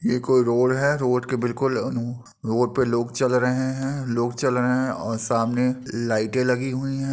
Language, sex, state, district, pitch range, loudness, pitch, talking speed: Hindi, male, Uttar Pradesh, Muzaffarnagar, 120-130 Hz, -23 LUFS, 125 Hz, 200 wpm